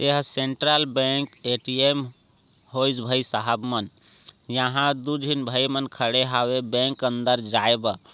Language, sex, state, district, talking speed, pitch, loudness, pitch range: Chhattisgarhi, male, Chhattisgarh, Raigarh, 140 wpm, 130 Hz, -23 LUFS, 120-135 Hz